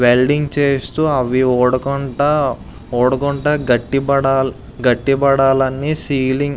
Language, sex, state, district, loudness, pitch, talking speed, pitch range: Telugu, male, Andhra Pradesh, Visakhapatnam, -16 LUFS, 135 Hz, 80 wpm, 130-140 Hz